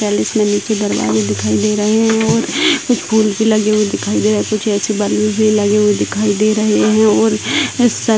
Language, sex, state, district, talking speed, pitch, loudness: Hindi, female, Bihar, Madhepura, 210 wpm, 210 Hz, -14 LUFS